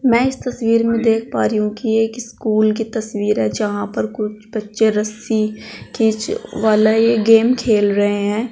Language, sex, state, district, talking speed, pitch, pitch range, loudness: Hindi, female, Uttar Pradesh, Saharanpur, 185 wpm, 220 Hz, 215-230 Hz, -17 LUFS